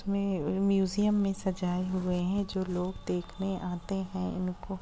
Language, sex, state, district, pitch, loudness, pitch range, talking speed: Hindi, female, Bihar, Gaya, 190 Hz, -31 LUFS, 180-195 Hz, 150 wpm